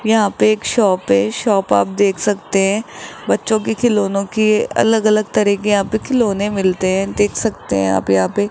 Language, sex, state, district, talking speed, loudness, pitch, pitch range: Hindi, male, Rajasthan, Jaipur, 205 wpm, -16 LUFS, 205 Hz, 195-220 Hz